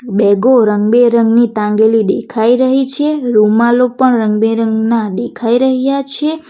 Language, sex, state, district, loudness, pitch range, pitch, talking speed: Gujarati, female, Gujarat, Valsad, -12 LUFS, 220-260 Hz, 235 Hz, 110 wpm